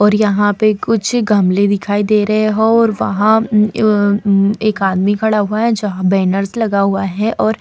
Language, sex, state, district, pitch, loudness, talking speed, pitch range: Hindi, female, Bihar, Vaishali, 210 Hz, -14 LUFS, 205 wpm, 200-220 Hz